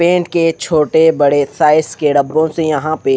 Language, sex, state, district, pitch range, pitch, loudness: Hindi, male, Haryana, Rohtak, 145-165 Hz, 155 Hz, -13 LUFS